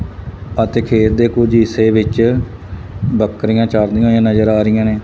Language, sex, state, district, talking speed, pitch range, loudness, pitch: Punjabi, male, Punjab, Fazilka, 155 wpm, 105-115 Hz, -14 LUFS, 110 Hz